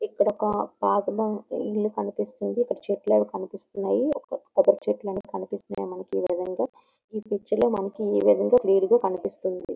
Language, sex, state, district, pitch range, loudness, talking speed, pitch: Telugu, female, Andhra Pradesh, Visakhapatnam, 185-220 Hz, -26 LUFS, 145 wpm, 205 Hz